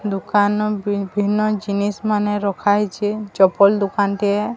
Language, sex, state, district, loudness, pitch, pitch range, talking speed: Odia, female, Odisha, Sambalpur, -19 LUFS, 205 Hz, 200-210 Hz, 120 wpm